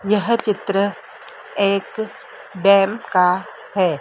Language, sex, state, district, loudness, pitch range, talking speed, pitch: Hindi, female, Madhya Pradesh, Dhar, -19 LUFS, 195-210 Hz, 90 wpm, 200 Hz